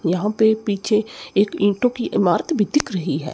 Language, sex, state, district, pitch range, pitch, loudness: Hindi, male, Chandigarh, Chandigarh, 185-220 Hz, 205 Hz, -20 LUFS